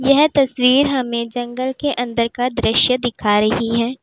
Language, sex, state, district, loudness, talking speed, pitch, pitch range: Hindi, female, Uttar Pradesh, Lalitpur, -17 LUFS, 165 wpm, 250 Hz, 235-265 Hz